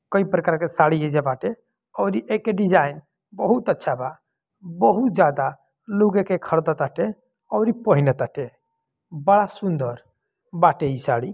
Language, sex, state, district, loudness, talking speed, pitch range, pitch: Bhojpuri, male, Bihar, Gopalganj, -21 LUFS, 145 wpm, 150-210 Hz, 185 Hz